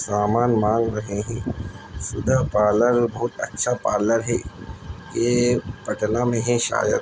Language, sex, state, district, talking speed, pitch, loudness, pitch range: Hindi, male, Uttar Pradesh, Jalaun, 130 wpm, 115 Hz, -22 LUFS, 105-120 Hz